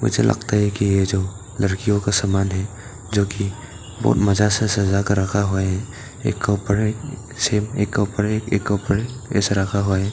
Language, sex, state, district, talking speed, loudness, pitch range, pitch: Hindi, male, Arunachal Pradesh, Papum Pare, 215 wpm, -20 LUFS, 100-105 Hz, 100 Hz